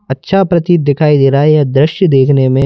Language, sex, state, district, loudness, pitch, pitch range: Hindi, male, Madhya Pradesh, Bhopal, -10 LUFS, 145 Hz, 135-170 Hz